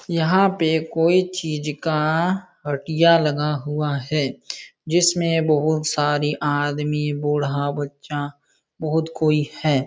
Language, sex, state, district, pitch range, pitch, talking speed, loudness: Hindi, male, Uttar Pradesh, Jalaun, 145-160 Hz, 150 Hz, 110 wpm, -21 LUFS